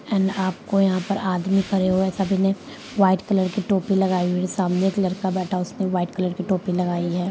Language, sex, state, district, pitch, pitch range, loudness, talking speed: Hindi, female, Bihar, Gaya, 190 Hz, 185-195 Hz, -22 LUFS, 215 wpm